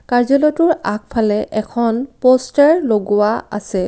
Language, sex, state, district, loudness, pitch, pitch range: Assamese, female, Assam, Kamrup Metropolitan, -15 LUFS, 235 Hz, 210-275 Hz